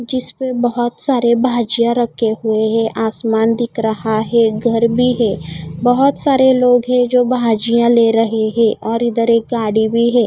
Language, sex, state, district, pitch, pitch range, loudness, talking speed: Hindi, female, Odisha, Khordha, 235 Hz, 225-245 Hz, -15 LUFS, 170 wpm